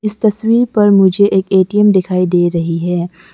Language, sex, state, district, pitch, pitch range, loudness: Hindi, female, Arunachal Pradesh, Lower Dibang Valley, 190 Hz, 180-210 Hz, -12 LUFS